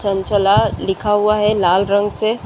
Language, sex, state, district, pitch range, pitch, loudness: Hindi, female, Uttar Pradesh, Muzaffarnagar, 195-210 Hz, 205 Hz, -16 LUFS